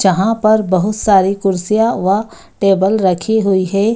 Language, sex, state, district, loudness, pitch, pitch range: Hindi, female, Bihar, Samastipur, -14 LUFS, 200 Hz, 190-220 Hz